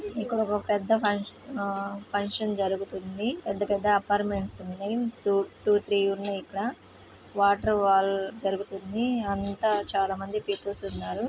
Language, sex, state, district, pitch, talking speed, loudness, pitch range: Telugu, female, Andhra Pradesh, Krishna, 200 Hz, 115 wpm, -28 LUFS, 195-210 Hz